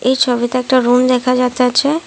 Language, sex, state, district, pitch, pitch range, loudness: Bengali, female, Assam, Kamrup Metropolitan, 250 Hz, 250-260 Hz, -14 LUFS